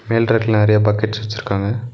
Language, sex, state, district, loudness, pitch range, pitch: Tamil, male, Tamil Nadu, Nilgiris, -17 LUFS, 105-115 Hz, 110 Hz